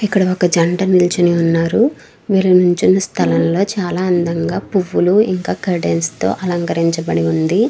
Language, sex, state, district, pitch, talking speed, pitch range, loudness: Telugu, female, Andhra Pradesh, Krishna, 175 Hz, 130 wpm, 165-190 Hz, -15 LUFS